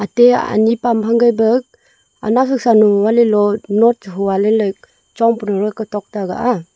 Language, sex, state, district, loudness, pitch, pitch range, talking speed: Wancho, female, Arunachal Pradesh, Longding, -15 LUFS, 220 Hz, 205-235 Hz, 105 wpm